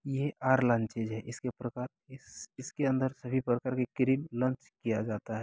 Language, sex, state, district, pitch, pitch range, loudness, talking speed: Hindi, male, Bihar, Bhagalpur, 125 Hz, 115-130 Hz, -32 LUFS, 175 wpm